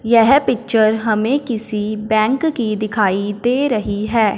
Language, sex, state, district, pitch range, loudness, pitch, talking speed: Hindi, male, Punjab, Fazilka, 215-240 Hz, -17 LUFS, 220 Hz, 135 wpm